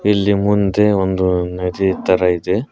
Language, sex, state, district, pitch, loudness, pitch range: Kannada, male, Karnataka, Koppal, 95 Hz, -16 LUFS, 90-105 Hz